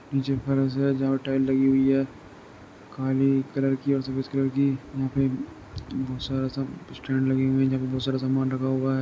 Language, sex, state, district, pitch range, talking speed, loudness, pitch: Hindi, male, Uttar Pradesh, Jyotiba Phule Nagar, 130-135 Hz, 215 wpm, -25 LUFS, 135 Hz